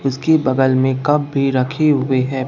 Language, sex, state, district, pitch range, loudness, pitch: Hindi, male, Bihar, Katihar, 130-145 Hz, -16 LUFS, 135 Hz